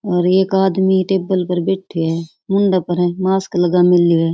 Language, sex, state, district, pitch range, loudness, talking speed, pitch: Rajasthani, female, Rajasthan, Churu, 175-190 Hz, -16 LUFS, 180 wpm, 180 Hz